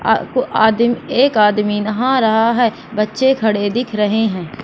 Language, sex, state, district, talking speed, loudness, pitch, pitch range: Hindi, female, Madhya Pradesh, Katni, 170 wpm, -15 LUFS, 220 Hz, 210-245 Hz